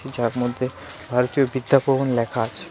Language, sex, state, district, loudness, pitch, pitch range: Bengali, male, Tripura, West Tripura, -22 LUFS, 125 Hz, 120-135 Hz